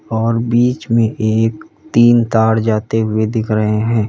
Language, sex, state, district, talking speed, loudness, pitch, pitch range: Hindi, male, Uttar Pradesh, Lalitpur, 160 wpm, -15 LUFS, 110 Hz, 110-115 Hz